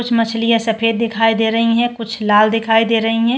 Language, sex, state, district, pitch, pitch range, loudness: Hindi, female, Chhattisgarh, Korba, 225 Hz, 225-230 Hz, -15 LUFS